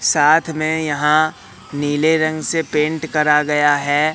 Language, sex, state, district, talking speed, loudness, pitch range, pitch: Hindi, male, Madhya Pradesh, Katni, 145 wpm, -17 LUFS, 145-155 Hz, 150 Hz